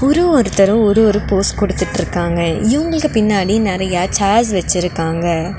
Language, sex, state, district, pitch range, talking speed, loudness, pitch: Tamil, female, Tamil Nadu, Nilgiris, 180-220 Hz, 120 wpm, -15 LUFS, 200 Hz